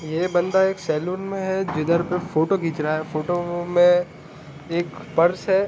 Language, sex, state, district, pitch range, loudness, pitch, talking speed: Hindi, male, Jharkhand, Sahebganj, 155-185 Hz, -22 LUFS, 175 Hz, 170 wpm